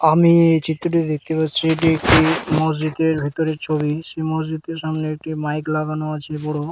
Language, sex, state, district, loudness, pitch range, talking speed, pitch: Bengali, male, West Bengal, Jalpaiguri, -19 LUFS, 155-160 Hz, 170 wpm, 155 Hz